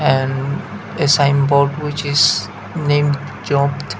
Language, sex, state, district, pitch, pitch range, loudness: English, male, Nagaland, Dimapur, 140 Hz, 135-145 Hz, -16 LUFS